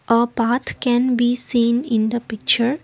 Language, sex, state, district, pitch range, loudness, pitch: English, female, Assam, Kamrup Metropolitan, 230-245 Hz, -18 LUFS, 240 Hz